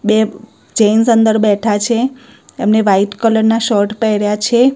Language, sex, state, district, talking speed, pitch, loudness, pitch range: Gujarati, female, Gujarat, Gandhinagar, 150 wpm, 220 Hz, -13 LUFS, 210-230 Hz